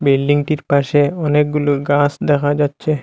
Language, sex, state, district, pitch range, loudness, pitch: Bengali, male, Assam, Hailakandi, 145-150 Hz, -16 LUFS, 145 Hz